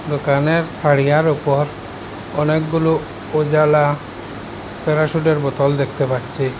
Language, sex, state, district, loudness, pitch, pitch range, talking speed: Bengali, male, Assam, Hailakandi, -17 LUFS, 145 Hz, 140-155 Hz, 80 wpm